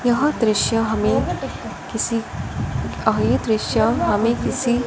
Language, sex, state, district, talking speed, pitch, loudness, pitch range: Hindi, female, Punjab, Fazilka, 110 wpm, 230 Hz, -20 LUFS, 220-245 Hz